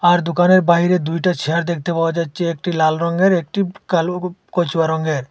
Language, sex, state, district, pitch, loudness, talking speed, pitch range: Bengali, male, Assam, Hailakandi, 170 Hz, -18 LUFS, 170 wpm, 165-180 Hz